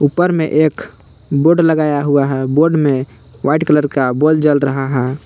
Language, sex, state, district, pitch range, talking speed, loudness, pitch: Hindi, male, Jharkhand, Palamu, 135-155 Hz, 185 wpm, -14 LUFS, 145 Hz